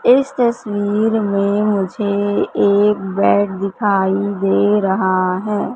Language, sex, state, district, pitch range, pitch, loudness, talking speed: Hindi, female, Madhya Pradesh, Katni, 195-210 Hz, 205 Hz, -16 LUFS, 105 wpm